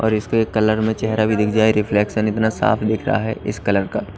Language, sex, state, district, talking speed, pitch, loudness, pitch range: Hindi, male, Odisha, Nuapada, 260 wpm, 110 Hz, -19 LUFS, 105-110 Hz